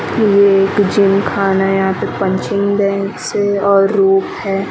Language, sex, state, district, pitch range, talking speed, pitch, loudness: Hindi, female, Maharashtra, Mumbai Suburban, 195-200 Hz, 165 wpm, 195 Hz, -14 LUFS